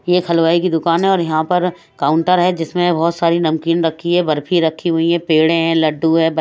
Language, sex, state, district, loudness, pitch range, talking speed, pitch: Hindi, female, Odisha, Malkangiri, -15 LUFS, 160-175 Hz, 245 wpm, 165 Hz